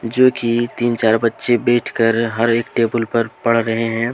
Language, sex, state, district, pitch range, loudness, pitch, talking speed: Hindi, male, Jharkhand, Deoghar, 115-120 Hz, -17 LUFS, 115 Hz, 205 wpm